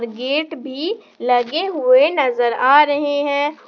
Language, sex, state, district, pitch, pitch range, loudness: Hindi, female, Jharkhand, Palamu, 285 Hz, 255-300 Hz, -17 LUFS